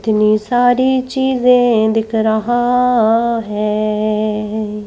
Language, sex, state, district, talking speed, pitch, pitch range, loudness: Hindi, female, Madhya Pradesh, Bhopal, 75 wpm, 220 Hz, 215-245 Hz, -14 LUFS